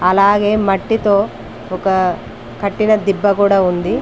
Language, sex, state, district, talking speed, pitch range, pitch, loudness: Telugu, female, Telangana, Mahabubabad, 105 wpm, 185-205 Hz, 200 Hz, -15 LUFS